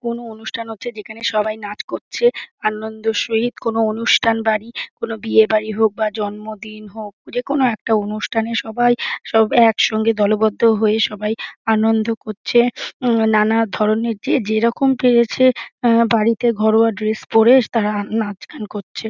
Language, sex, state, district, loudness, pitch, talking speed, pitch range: Bengali, female, West Bengal, Dakshin Dinajpur, -18 LUFS, 225 Hz, 130 wpm, 215-230 Hz